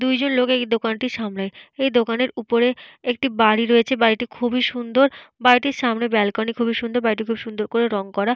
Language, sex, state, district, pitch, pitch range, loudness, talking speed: Bengali, female, Jharkhand, Jamtara, 235 Hz, 225-250 Hz, -20 LUFS, 185 wpm